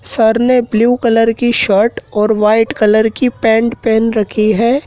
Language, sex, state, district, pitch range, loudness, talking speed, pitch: Hindi, male, Madhya Pradesh, Dhar, 215-240 Hz, -12 LUFS, 170 wpm, 225 Hz